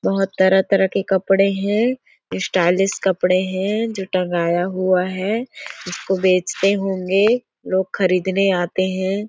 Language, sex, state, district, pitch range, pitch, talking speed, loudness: Hindi, female, Chhattisgarh, Sarguja, 185-195 Hz, 190 Hz, 125 wpm, -19 LUFS